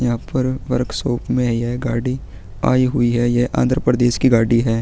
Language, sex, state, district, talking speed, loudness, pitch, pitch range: Hindi, male, Uttarakhand, Tehri Garhwal, 175 wpm, -18 LUFS, 120 Hz, 115-125 Hz